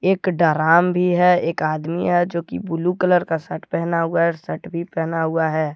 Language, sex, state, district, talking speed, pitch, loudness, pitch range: Hindi, male, Jharkhand, Deoghar, 210 wpm, 170 Hz, -20 LUFS, 160-180 Hz